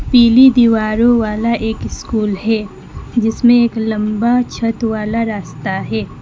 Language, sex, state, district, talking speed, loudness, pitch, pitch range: Hindi, female, West Bengal, Alipurduar, 125 wpm, -14 LUFS, 225 Hz, 215-235 Hz